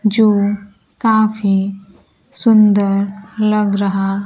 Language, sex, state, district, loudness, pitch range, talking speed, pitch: Hindi, female, Bihar, Kaimur, -15 LUFS, 200-215 Hz, 70 wpm, 205 Hz